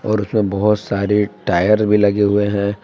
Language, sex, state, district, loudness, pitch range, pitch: Hindi, male, Jharkhand, Palamu, -16 LUFS, 100-105 Hz, 105 Hz